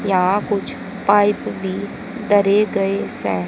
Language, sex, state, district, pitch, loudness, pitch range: Hindi, female, Haryana, Jhajjar, 200 Hz, -18 LUFS, 195-205 Hz